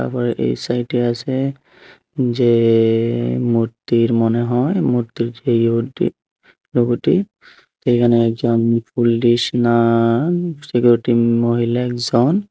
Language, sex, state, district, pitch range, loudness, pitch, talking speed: Bengali, male, Tripura, Unakoti, 115-120 Hz, -17 LUFS, 120 Hz, 95 wpm